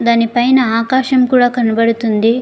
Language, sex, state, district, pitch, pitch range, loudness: Telugu, female, Andhra Pradesh, Guntur, 235 Hz, 230-255 Hz, -13 LUFS